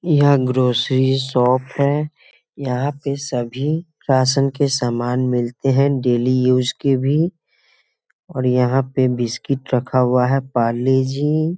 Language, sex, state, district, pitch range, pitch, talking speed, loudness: Hindi, male, Bihar, Muzaffarpur, 125-140 Hz, 130 Hz, 130 wpm, -18 LUFS